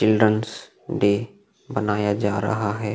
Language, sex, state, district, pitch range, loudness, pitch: Hindi, male, Uttar Pradesh, Jalaun, 100-110 Hz, -23 LUFS, 105 Hz